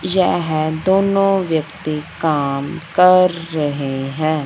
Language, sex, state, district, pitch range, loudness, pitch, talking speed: Hindi, female, Punjab, Fazilka, 150-185 Hz, -17 LUFS, 160 Hz, 95 wpm